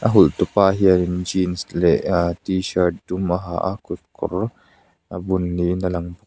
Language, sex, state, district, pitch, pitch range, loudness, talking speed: Mizo, male, Mizoram, Aizawl, 90 Hz, 90-95 Hz, -20 LUFS, 190 wpm